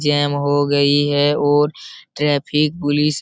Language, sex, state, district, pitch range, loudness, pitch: Hindi, male, Bihar, Araria, 145-150 Hz, -17 LUFS, 145 Hz